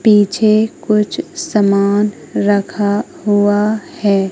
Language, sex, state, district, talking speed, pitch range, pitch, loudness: Hindi, female, Madhya Pradesh, Katni, 85 wpm, 200-215 Hz, 205 Hz, -15 LUFS